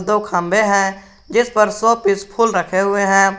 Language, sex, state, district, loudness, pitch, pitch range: Hindi, male, Jharkhand, Garhwa, -16 LUFS, 200 Hz, 195-215 Hz